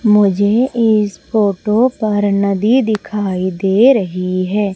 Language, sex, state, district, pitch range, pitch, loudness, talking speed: Hindi, female, Madhya Pradesh, Umaria, 195-220 Hz, 210 Hz, -14 LUFS, 115 wpm